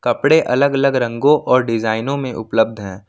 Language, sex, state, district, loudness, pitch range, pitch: Hindi, male, Jharkhand, Ranchi, -16 LUFS, 115-140 Hz, 125 Hz